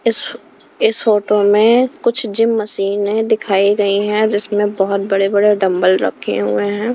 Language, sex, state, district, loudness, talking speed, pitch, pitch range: Hindi, female, Himachal Pradesh, Shimla, -15 LUFS, 155 wpm, 205 Hz, 195-220 Hz